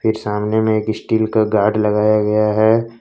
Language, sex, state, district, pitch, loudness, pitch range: Hindi, male, Jharkhand, Ranchi, 110 Hz, -16 LUFS, 105-110 Hz